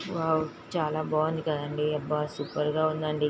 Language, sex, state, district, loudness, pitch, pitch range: Telugu, female, Andhra Pradesh, Srikakulam, -29 LUFS, 155 Hz, 150-155 Hz